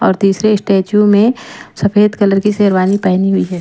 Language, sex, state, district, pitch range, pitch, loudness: Hindi, female, Bihar, Patna, 195-210 Hz, 200 Hz, -12 LUFS